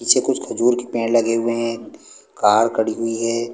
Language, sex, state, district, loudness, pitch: Hindi, male, Punjab, Pathankot, -19 LUFS, 115 Hz